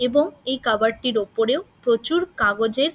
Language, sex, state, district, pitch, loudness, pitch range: Bengali, female, West Bengal, Dakshin Dinajpur, 250 Hz, -22 LUFS, 225-290 Hz